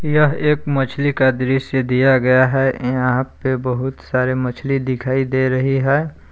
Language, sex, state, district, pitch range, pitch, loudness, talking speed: Hindi, male, Jharkhand, Palamu, 130-135 Hz, 130 Hz, -17 LUFS, 160 wpm